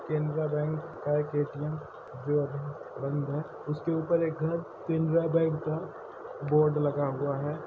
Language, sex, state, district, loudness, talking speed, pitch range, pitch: Hindi, male, Uttar Pradesh, Hamirpur, -30 LUFS, 180 wpm, 145-160 Hz, 150 Hz